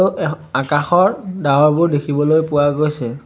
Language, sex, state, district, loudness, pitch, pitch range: Assamese, male, Assam, Sonitpur, -16 LUFS, 150 Hz, 145-160 Hz